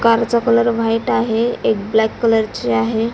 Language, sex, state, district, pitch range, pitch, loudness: Marathi, female, Maharashtra, Solapur, 220-235 Hz, 225 Hz, -16 LUFS